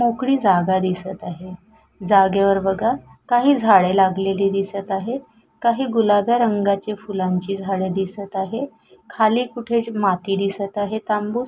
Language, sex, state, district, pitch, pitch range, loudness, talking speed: Marathi, female, Maharashtra, Sindhudurg, 200 Hz, 195-230 Hz, -20 LUFS, 125 wpm